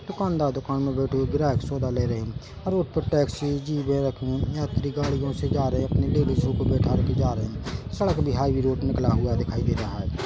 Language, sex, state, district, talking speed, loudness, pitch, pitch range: Hindi, male, Chhattisgarh, Bilaspur, 230 wpm, -25 LUFS, 135 Hz, 125-145 Hz